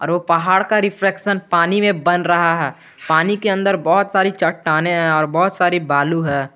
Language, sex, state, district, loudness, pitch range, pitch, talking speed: Hindi, male, Jharkhand, Garhwa, -16 LUFS, 165-195 Hz, 175 Hz, 190 wpm